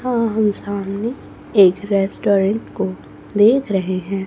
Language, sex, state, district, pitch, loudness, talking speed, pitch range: Hindi, female, Chhattisgarh, Raipur, 200 Hz, -18 LUFS, 125 wpm, 195-220 Hz